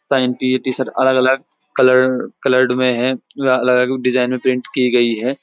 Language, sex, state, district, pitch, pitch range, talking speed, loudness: Hindi, male, Uttarakhand, Uttarkashi, 130 Hz, 125-130 Hz, 155 wpm, -16 LUFS